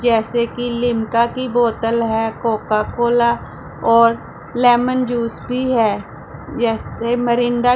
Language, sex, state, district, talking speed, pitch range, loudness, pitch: Hindi, female, Punjab, Pathankot, 125 wpm, 230-245 Hz, -18 LUFS, 235 Hz